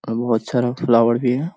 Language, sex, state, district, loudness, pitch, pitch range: Hindi, female, Bihar, Sitamarhi, -18 LUFS, 120 Hz, 115-125 Hz